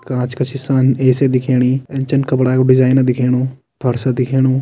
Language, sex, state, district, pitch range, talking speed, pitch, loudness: Kumaoni, male, Uttarakhand, Tehri Garhwal, 125-130 Hz, 170 wpm, 130 Hz, -15 LUFS